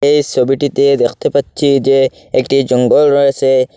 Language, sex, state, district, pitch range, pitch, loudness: Bengali, male, Assam, Hailakandi, 130-140 Hz, 135 Hz, -12 LUFS